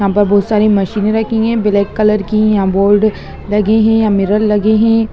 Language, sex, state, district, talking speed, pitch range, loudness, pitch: Hindi, male, Bihar, Gaya, 200 wpm, 205-220 Hz, -12 LUFS, 210 Hz